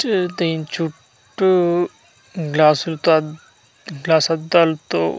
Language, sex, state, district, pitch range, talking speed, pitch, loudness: Telugu, male, Andhra Pradesh, Manyam, 150-170 Hz, 70 wpm, 160 Hz, -18 LUFS